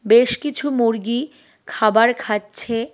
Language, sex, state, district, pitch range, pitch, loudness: Bengali, female, West Bengal, Cooch Behar, 225-265 Hz, 235 Hz, -17 LUFS